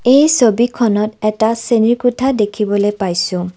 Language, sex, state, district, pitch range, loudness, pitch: Assamese, female, Assam, Kamrup Metropolitan, 205-240 Hz, -14 LUFS, 220 Hz